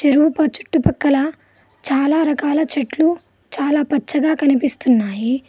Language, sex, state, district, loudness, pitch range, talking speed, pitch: Telugu, female, Telangana, Mahabubabad, -17 LUFS, 275-305 Hz, 85 wpm, 290 Hz